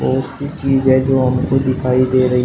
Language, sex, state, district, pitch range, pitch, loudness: Hindi, male, Uttar Pradesh, Shamli, 130-135 Hz, 130 Hz, -15 LUFS